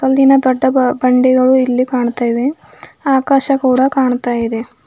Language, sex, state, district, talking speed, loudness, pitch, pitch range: Kannada, female, Karnataka, Bidar, 125 wpm, -13 LUFS, 255 Hz, 250-265 Hz